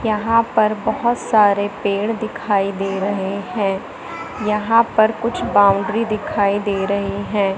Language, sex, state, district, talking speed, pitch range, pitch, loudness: Hindi, female, Madhya Pradesh, Katni, 135 wpm, 200-225 Hz, 210 Hz, -18 LUFS